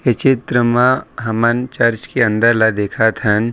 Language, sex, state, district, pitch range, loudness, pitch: Chhattisgarhi, male, Chhattisgarh, Raigarh, 110-125 Hz, -15 LUFS, 115 Hz